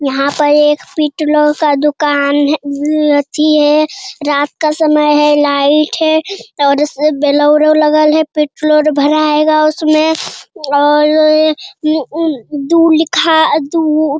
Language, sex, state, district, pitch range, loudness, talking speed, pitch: Hindi, male, Bihar, Jamui, 295-310 Hz, -11 LUFS, 130 wpm, 300 Hz